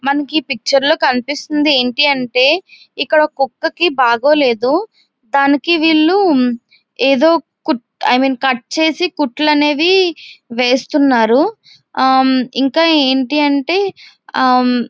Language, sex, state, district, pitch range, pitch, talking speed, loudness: Telugu, female, Andhra Pradesh, Visakhapatnam, 260-315 Hz, 285 Hz, 100 wpm, -13 LUFS